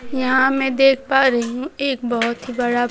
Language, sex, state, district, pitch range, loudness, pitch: Hindi, female, Bihar, Kaimur, 245-270 Hz, -18 LUFS, 260 Hz